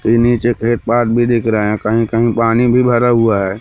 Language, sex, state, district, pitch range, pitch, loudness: Hindi, male, Madhya Pradesh, Katni, 115-120 Hz, 115 Hz, -13 LUFS